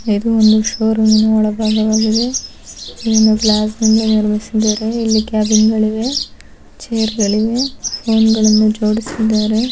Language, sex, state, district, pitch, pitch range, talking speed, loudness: Kannada, female, Karnataka, Chamarajanagar, 220 Hz, 215-220 Hz, 85 wpm, -14 LUFS